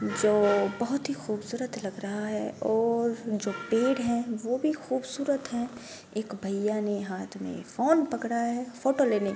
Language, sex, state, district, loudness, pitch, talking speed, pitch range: Hindi, female, Bihar, Gopalganj, -29 LUFS, 230 Hz, 175 wpm, 205-250 Hz